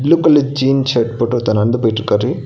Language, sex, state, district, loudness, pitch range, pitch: Tamil, male, Tamil Nadu, Nilgiris, -14 LUFS, 115-140 Hz, 120 Hz